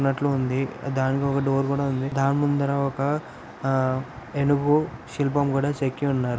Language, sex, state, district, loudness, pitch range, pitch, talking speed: Telugu, male, Andhra Pradesh, Anantapur, -24 LUFS, 135-140 Hz, 140 Hz, 160 wpm